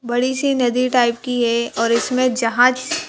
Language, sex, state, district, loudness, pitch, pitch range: Hindi, female, Madhya Pradesh, Bhopal, -17 LUFS, 245 Hz, 235-255 Hz